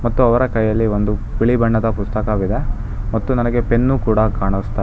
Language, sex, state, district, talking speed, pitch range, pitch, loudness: Kannada, male, Karnataka, Bangalore, 160 wpm, 105-120 Hz, 110 Hz, -18 LUFS